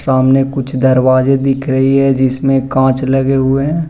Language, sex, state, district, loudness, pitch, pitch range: Hindi, male, Arunachal Pradesh, Lower Dibang Valley, -12 LUFS, 135 Hz, 130-135 Hz